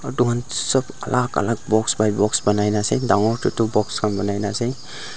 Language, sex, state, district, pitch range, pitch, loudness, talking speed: Nagamese, male, Nagaland, Dimapur, 105-125 Hz, 110 Hz, -20 LUFS, 210 wpm